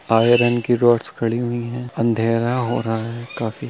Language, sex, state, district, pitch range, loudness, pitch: Hindi, male, Chhattisgarh, Bilaspur, 115-120 Hz, -20 LUFS, 120 Hz